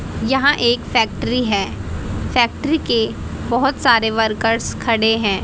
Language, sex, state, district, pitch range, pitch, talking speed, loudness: Hindi, female, Haryana, Rohtak, 225-255 Hz, 230 Hz, 120 wpm, -17 LUFS